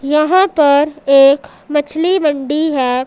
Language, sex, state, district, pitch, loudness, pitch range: Hindi, male, Punjab, Pathankot, 295 Hz, -13 LUFS, 275-310 Hz